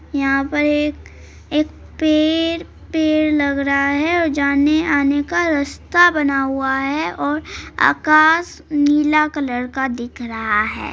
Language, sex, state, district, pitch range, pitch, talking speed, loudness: Hindi, male, Bihar, Araria, 275-310 Hz, 295 Hz, 130 wpm, -17 LUFS